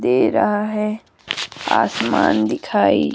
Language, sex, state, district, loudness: Hindi, female, Himachal Pradesh, Shimla, -18 LUFS